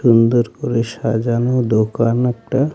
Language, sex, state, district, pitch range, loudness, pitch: Bengali, male, West Bengal, Alipurduar, 115-125 Hz, -17 LUFS, 120 Hz